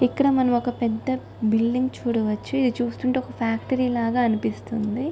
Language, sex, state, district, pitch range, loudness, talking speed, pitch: Telugu, female, Andhra Pradesh, Guntur, 230-255 Hz, -23 LUFS, 130 wpm, 245 Hz